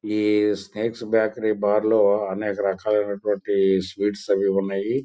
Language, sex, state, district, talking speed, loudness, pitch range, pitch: Telugu, male, Andhra Pradesh, Guntur, 130 wpm, -22 LUFS, 100-105 Hz, 105 Hz